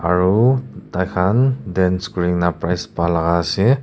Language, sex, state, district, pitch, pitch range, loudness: Nagamese, male, Nagaland, Kohima, 90 Hz, 90-110 Hz, -18 LUFS